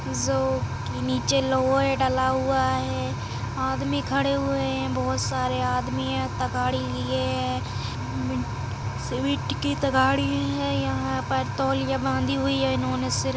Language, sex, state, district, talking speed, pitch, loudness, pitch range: Kumaoni, female, Uttarakhand, Tehri Garhwal, 140 wpm, 130 Hz, -25 LUFS, 125-135 Hz